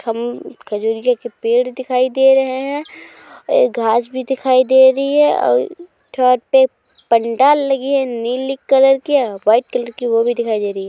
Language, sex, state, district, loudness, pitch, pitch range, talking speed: Hindi, female, Uttar Pradesh, Jyotiba Phule Nagar, -15 LUFS, 255 Hz, 235-270 Hz, 195 wpm